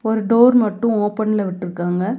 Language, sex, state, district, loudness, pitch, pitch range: Tamil, female, Tamil Nadu, Nilgiris, -17 LUFS, 215 Hz, 190-230 Hz